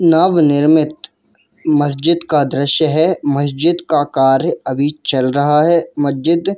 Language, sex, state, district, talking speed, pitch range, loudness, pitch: Hindi, male, Jharkhand, Jamtara, 125 wpm, 140-165 Hz, -14 LUFS, 150 Hz